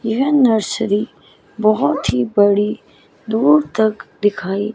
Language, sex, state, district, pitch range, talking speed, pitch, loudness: Hindi, female, Chandigarh, Chandigarh, 200-220 Hz, 100 wpm, 210 Hz, -16 LUFS